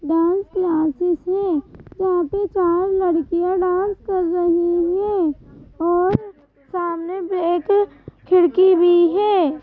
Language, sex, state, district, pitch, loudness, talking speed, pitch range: Hindi, female, Madhya Pradesh, Bhopal, 355 Hz, -19 LUFS, 105 wpm, 345-375 Hz